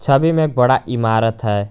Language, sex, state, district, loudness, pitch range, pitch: Hindi, male, Jharkhand, Garhwa, -16 LUFS, 110-135 Hz, 120 Hz